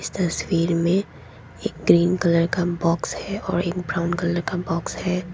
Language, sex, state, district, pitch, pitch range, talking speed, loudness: Hindi, female, Assam, Kamrup Metropolitan, 175 Hz, 170-180 Hz, 170 wpm, -22 LUFS